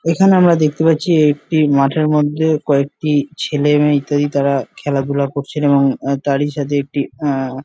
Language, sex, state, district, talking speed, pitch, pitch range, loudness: Bengali, male, West Bengal, Jalpaiguri, 150 wpm, 145 Hz, 140-155 Hz, -15 LUFS